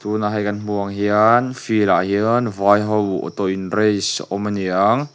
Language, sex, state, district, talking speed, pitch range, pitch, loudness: Mizo, male, Mizoram, Aizawl, 200 wpm, 100-105 Hz, 105 Hz, -18 LUFS